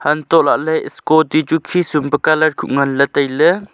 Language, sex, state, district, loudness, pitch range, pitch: Wancho, male, Arunachal Pradesh, Longding, -15 LUFS, 145-160 Hz, 155 Hz